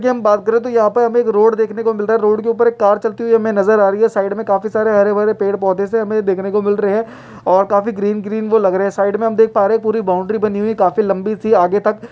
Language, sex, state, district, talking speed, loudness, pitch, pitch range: Hindi, male, Jharkhand, Jamtara, 305 wpm, -15 LUFS, 215 Hz, 200-225 Hz